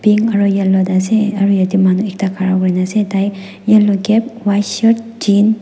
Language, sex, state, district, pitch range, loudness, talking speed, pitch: Nagamese, female, Nagaland, Dimapur, 190-215 Hz, -14 LUFS, 180 wpm, 200 Hz